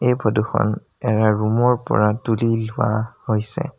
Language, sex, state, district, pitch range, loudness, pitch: Assamese, male, Assam, Sonitpur, 110-125 Hz, -20 LUFS, 115 Hz